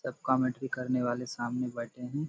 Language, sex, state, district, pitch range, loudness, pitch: Hindi, male, Chhattisgarh, Bastar, 120-130 Hz, -32 LUFS, 125 Hz